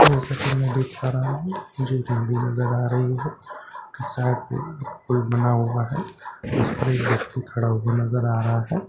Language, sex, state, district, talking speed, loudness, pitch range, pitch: Hindi, male, Bihar, Katihar, 190 wpm, -24 LUFS, 120-140 Hz, 125 Hz